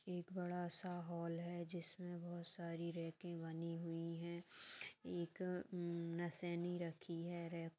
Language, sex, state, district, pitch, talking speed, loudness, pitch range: Magahi, female, Bihar, Gaya, 170 Hz, 115 wpm, -48 LUFS, 170-175 Hz